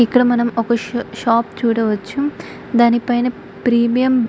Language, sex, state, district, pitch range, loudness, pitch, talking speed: Telugu, female, Andhra Pradesh, Guntur, 230-245 Hz, -17 LUFS, 235 Hz, 125 wpm